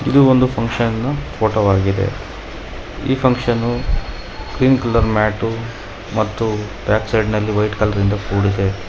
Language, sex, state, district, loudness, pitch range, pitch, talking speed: Kannada, male, Karnataka, Bangalore, -17 LUFS, 100-115 Hz, 110 Hz, 120 wpm